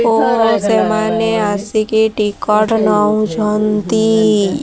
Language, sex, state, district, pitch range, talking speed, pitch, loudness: Odia, female, Odisha, Sambalpur, 210-220 Hz, 65 wpm, 215 Hz, -14 LUFS